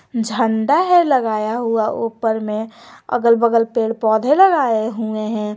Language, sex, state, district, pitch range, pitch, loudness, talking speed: Hindi, female, Jharkhand, Garhwa, 220-235 Hz, 225 Hz, -17 LUFS, 140 wpm